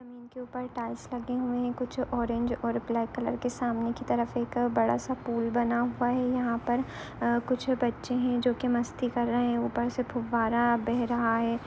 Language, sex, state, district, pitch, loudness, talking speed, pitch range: Hindi, female, Maharashtra, Solapur, 240 Hz, -29 LUFS, 200 wpm, 235-250 Hz